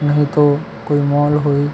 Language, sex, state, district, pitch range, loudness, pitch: Chhattisgarhi, male, Chhattisgarh, Kabirdham, 145-150 Hz, -15 LUFS, 145 Hz